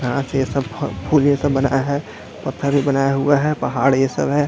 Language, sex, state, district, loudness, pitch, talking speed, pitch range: Hindi, male, Bihar, Darbhanga, -19 LUFS, 140 Hz, 200 wpm, 135-140 Hz